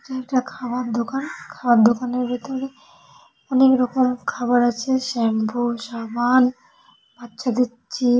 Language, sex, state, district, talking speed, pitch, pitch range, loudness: Bengali, female, West Bengal, North 24 Parganas, 115 wpm, 250 Hz, 240-260 Hz, -21 LUFS